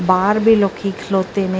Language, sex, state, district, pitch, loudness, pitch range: Punjabi, female, Karnataka, Bangalore, 195 Hz, -17 LUFS, 185-205 Hz